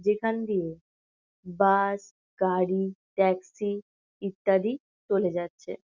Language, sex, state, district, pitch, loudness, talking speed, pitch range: Bengali, female, West Bengal, Kolkata, 195 Hz, -28 LUFS, 80 wpm, 185-205 Hz